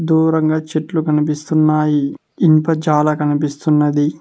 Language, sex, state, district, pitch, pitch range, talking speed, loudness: Telugu, male, Telangana, Mahabubabad, 155 Hz, 150-160 Hz, 85 wpm, -16 LUFS